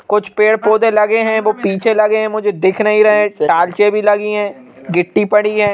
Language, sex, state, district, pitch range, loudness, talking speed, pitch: Hindi, male, Madhya Pradesh, Bhopal, 205-215 Hz, -13 LUFS, 220 wpm, 210 Hz